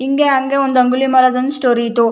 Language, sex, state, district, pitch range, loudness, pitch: Kannada, female, Karnataka, Chamarajanagar, 250-270 Hz, -14 LUFS, 260 Hz